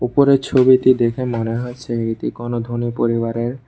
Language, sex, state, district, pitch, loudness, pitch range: Bengali, male, Tripura, West Tripura, 120 Hz, -18 LUFS, 115-130 Hz